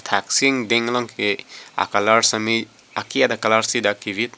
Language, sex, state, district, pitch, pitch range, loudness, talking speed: Karbi, male, Assam, Karbi Anglong, 110 Hz, 110-115 Hz, -19 LUFS, 190 wpm